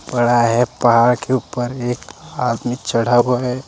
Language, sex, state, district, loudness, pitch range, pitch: Hindi, male, Jharkhand, Deoghar, -17 LUFS, 120-125 Hz, 120 Hz